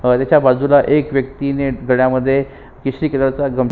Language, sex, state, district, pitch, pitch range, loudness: Marathi, male, Maharashtra, Sindhudurg, 135 Hz, 130-140 Hz, -16 LUFS